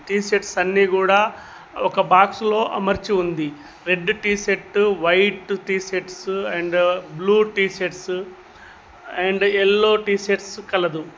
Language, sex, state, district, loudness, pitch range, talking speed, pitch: Telugu, male, Telangana, Mahabubabad, -20 LUFS, 185-200 Hz, 100 wpm, 195 Hz